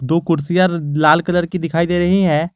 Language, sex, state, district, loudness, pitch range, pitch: Hindi, male, Jharkhand, Garhwa, -16 LUFS, 160-180 Hz, 170 Hz